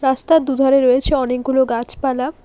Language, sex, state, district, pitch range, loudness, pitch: Bengali, female, West Bengal, Alipurduar, 255-275 Hz, -16 LUFS, 265 Hz